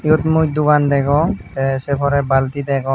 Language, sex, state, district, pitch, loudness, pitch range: Chakma, male, Tripura, Unakoti, 140 Hz, -16 LUFS, 135-150 Hz